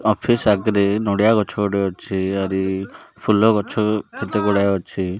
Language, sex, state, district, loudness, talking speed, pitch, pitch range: Odia, male, Odisha, Malkangiri, -19 LUFS, 140 wpm, 100 Hz, 95-105 Hz